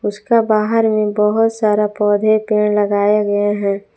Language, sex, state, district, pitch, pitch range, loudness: Hindi, female, Jharkhand, Palamu, 210 Hz, 205-215 Hz, -15 LUFS